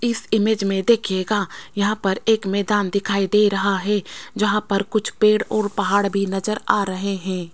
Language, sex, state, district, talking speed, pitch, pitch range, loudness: Hindi, female, Rajasthan, Jaipur, 185 wpm, 205 Hz, 195-215 Hz, -20 LUFS